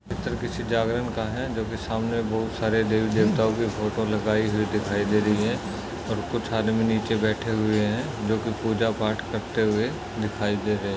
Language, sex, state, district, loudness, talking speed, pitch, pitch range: Hindi, male, Maharashtra, Solapur, -25 LUFS, 190 wpm, 110 Hz, 105-115 Hz